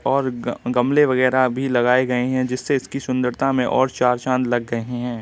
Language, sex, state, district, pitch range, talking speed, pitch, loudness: Hindi, male, Uttar Pradesh, Budaun, 125-130 Hz, 205 wpm, 130 Hz, -20 LUFS